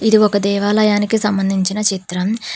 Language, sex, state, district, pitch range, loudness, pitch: Telugu, female, Telangana, Hyderabad, 195-215 Hz, -16 LUFS, 205 Hz